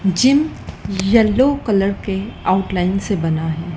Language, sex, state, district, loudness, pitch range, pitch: Hindi, female, Madhya Pradesh, Dhar, -17 LUFS, 185-225 Hz, 195 Hz